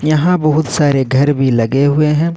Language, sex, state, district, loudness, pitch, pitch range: Hindi, male, Jharkhand, Ranchi, -13 LUFS, 145 Hz, 135-155 Hz